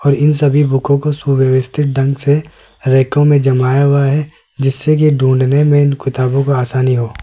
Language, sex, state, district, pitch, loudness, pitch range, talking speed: Hindi, male, Rajasthan, Jaipur, 140 Hz, -13 LUFS, 130-145 Hz, 185 wpm